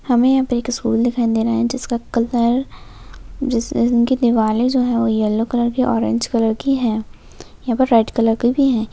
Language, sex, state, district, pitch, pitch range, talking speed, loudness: Hindi, female, Maharashtra, Sindhudurg, 235 Hz, 230-250 Hz, 210 wpm, -17 LUFS